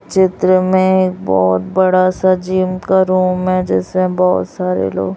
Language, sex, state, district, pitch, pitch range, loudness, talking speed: Hindi, female, Chhattisgarh, Raipur, 185 Hz, 180-185 Hz, -14 LUFS, 165 wpm